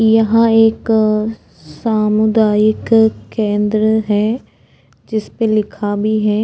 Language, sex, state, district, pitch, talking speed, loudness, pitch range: Hindi, female, Uttarakhand, Tehri Garhwal, 215 Hz, 85 wpm, -15 LUFS, 210-225 Hz